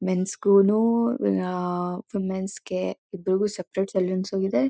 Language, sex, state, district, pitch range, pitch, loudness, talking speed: Kannada, female, Karnataka, Mysore, 185-200 Hz, 190 Hz, -25 LUFS, 125 wpm